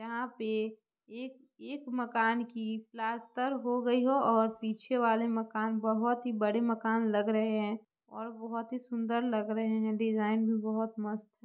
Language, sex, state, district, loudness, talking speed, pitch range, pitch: Hindi, female, Bihar, Muzaffarpur, -32 LUFS, 170 wpm, 220-235 Hz, 225 Hz